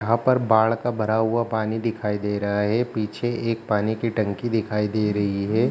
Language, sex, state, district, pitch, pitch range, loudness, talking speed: Hindi, male, Bihar, Kishanganj, 110 Hz, 105-115 Hz, -23 LUFS, 210 wpm